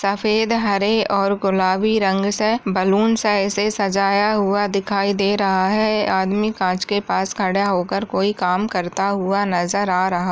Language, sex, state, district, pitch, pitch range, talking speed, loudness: Hindi, female, Chhattisgarh, Balrampur, 200 Hz, 190-210 Hz, 165 wpm, -19 LUFS